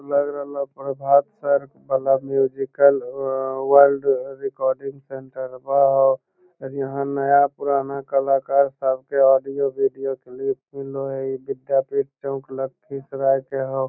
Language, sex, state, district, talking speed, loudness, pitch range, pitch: Magahi, male, Bihar, Lakhisarai, 120 wpm, -21 LUFS, 135-140 Hz, 135 Hz